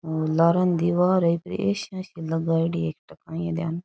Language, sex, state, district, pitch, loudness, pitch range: Rajasthani, female, Rajasthan, Churu, 170 Hz, -24 LUFS, 165-175 Hz